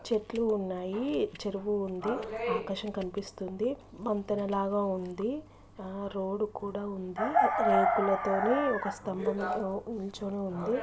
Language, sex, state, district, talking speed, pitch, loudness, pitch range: Telugu, female, Andhra Pradesh, Guntur, 90 wpm, 205 Hz, -31 LUFS, 195-220 Hz